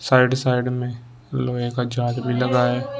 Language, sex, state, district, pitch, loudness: Hindi, male, Uttar Pradesh, Shamli, 125 Hz, -22 LUFS